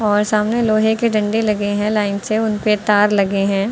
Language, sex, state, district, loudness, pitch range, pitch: Hindi, female, Uttar Pradesh, Lucknow, -17 LUFS, 205-215 Hz, 210 Hz